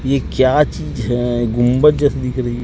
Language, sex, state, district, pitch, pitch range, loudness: Hindi, male, Chhattisgarh, Raipur, 125 Hz, 120-140 Hz, -16 LUFS